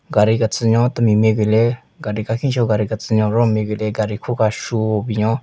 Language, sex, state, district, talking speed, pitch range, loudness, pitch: Rengma, male, Nagaland, Kohima, 220 wpm, 110-115 Hz, -18 LUFS, 110 Hz